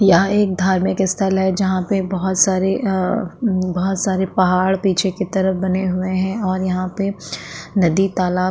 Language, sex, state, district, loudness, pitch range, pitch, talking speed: Hindi, female, Uttarakhand, Tehri Garhwal, -18 LUFS, 185-195 Hz, 190 Hz, 175 wpm